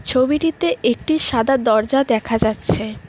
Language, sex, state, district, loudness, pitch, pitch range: Bengali, female, West Bengal, Cooch Behar, -18 LUFS, 235 Hz, 220-275 Hz